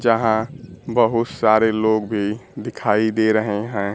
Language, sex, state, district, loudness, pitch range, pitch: Hindi, male, Bihar, Kaimur, -19 LUFS, 105-110 Hz, 110 Hz